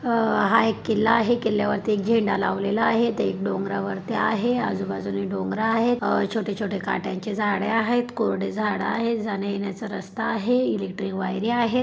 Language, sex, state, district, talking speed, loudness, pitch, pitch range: Marathi, female, Maharashtra, Dhule, 165 wpm, -24 LUFS, 210 Hz, 195-230 Hz